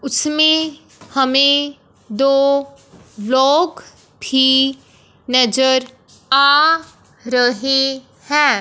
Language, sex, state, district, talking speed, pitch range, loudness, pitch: Hindi, male, Punjab, Fazilka, 65 wpm, 260-290 Hz, -15 LUFS, 270 Hz